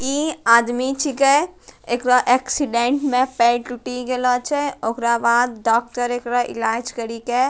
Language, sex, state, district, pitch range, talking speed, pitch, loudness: Angika, female, Bihar, Bhagalpur, 235-260 Hz, 145 wpm, 245 Hz, -19 LUFS